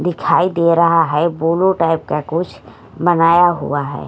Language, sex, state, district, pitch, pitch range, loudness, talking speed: Hindi, female, Haryana, Charkhi Dadri, 165 Hz, 155-170 Hz, -15 LUFS, 160 wpm